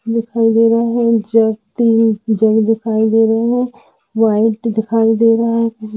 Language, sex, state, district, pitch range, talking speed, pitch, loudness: Hindi, female, Jharkhand, Jamtara, 220-230 Hz, 160 wpm, 225 Hz, -14 LUFS